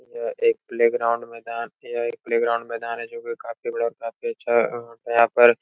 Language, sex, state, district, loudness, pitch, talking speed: Hindi, male, Uttar Pradesh, Etah, -24 LUFS, 120 Hz, 205 wpm